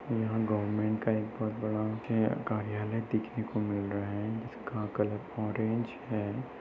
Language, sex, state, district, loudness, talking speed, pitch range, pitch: Hindi, male, Uttar Pradesh, Jyotiba Phule Nagar, -33 LUFS, 145 wpm, 105-110 Hz, 110 Hz